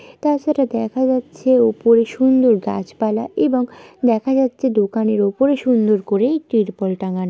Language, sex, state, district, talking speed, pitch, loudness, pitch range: Bengali, female, West Bengal, Jalpaiguri, 125 wpm, 235 Hz, -17 LUFS, 215-260 Hz